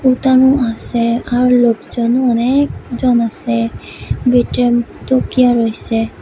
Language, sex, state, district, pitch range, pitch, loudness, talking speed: Bengali, female, Tripura, West Tripura, 230-255 Hz, 240 Hz, -14 LUFS, 70 wpm